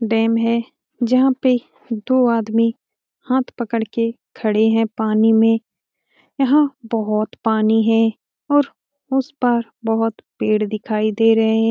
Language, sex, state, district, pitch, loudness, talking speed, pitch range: Hindi, female, Bihar, Jamui, 230 Hz, -18 LUFS, 135 wpm, 225-255 Hz